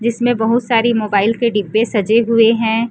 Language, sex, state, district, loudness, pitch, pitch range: Hindi, female, Chhattisgarh, Raipur, -15 LUFS, 230 Hz, 220-235 Hz